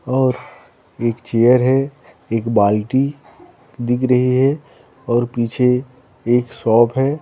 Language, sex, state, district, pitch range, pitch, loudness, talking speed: Hindi, male, Bihar, Patna, 115-130 Hz, 125 Hz, -17 LUFS, 115 wpm